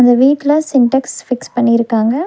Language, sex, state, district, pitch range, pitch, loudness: Tamil, female, Tamil Nadu, Nilgiris, 240-280 Hz, 250 Hz, -13 LUFS